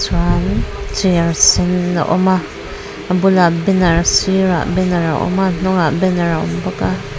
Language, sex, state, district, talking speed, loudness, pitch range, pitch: Mizo, female, Mizoram, Aizawl, 185 wpm, -15 LUFS, 170-185 Hz, 180 Hz